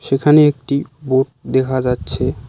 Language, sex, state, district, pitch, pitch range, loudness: Bengali, male, West Bengal, Cooch Behar, 135 Hz, 130-145 Hz, -16 LUFS